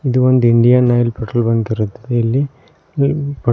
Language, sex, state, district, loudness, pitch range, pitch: Kannada, male, Karnataka, Koppal, -15 LUFS, 115-135 Hz, 120 Hz